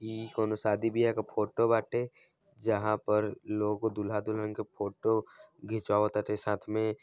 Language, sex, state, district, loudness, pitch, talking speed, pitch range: Bhojpuri, male, Bihar, Saran, -31 LUFS, 110 Hz, 145 wpm, 105-110 Hz